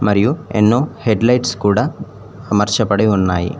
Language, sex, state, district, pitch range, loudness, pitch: Telugu, male, Telangana, Mahabubabad, 100-120 Hz, -16 LUFS, 105 Hz